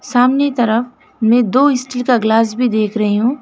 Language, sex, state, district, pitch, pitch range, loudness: Hindi, female, West Bengal, Alipurduar, 245 Hz, 225-255 Hz, -14 LUFS